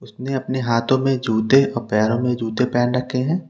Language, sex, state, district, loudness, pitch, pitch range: Hindi, male, Uttar Pradesh, Lalitpur, -20 LUFS, 125 Hz, 115-130 Hz